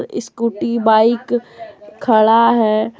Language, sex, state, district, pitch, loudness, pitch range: Hindi, female, Jharkhand, Deoghar, 230 Hz, -15 LUFS, 220-240 Hz